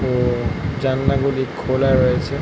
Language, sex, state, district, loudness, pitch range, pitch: Bengali, male, West Bengal, North 24 Parganas, -19 LUFS, 125-140 Hz, 130 Hz